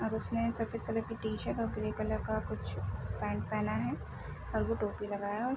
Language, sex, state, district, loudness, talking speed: Hindi, female, Bihar, Sitamarhi, -36 LUFS, 205 wpm